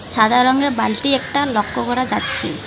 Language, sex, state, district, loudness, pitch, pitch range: Bengali, female, West Bengal, Alipurduar, -17 LUFS, 255 Hz, 235-275 Hz